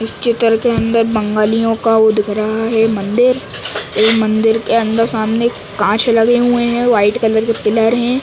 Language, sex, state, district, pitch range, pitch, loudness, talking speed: Hindi, male, Uttar Pradesh, Ghazipur, 215-235 Hz, 225 Hz, -14 LUFS, 195 wpm